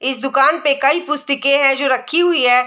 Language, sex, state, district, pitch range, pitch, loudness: Hindi, female, Bihar, Sitamarhi, 265-300 Hz, 275 Hz, -15 LUFS